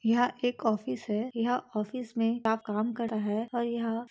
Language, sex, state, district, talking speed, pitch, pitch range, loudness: Hindi, female, Chhattisgarh, Bastar, 205 wpm, 230 Hz, 220-240 Hz, -31 LUFS